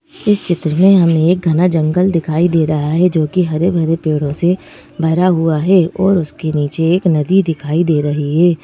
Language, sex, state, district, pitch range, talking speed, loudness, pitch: Hindi, female, Madhya Pradesh, Bhopal, 155-180 Hz, 195 wpm, -14 LUFS, 165 Hz